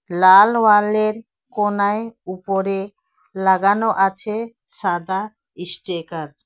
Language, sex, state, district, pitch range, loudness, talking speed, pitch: Bengali, female, West Bengal, Alipurduar, 185-215 Hz, -18 LUFS, 85 wpm, 200 Hz